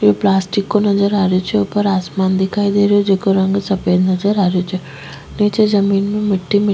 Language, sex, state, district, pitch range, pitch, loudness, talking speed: Rajasthani, female, Rajasthan, Nagaur, 185-205 Hz, 195 Hz, -15 LUFS, 215 wpm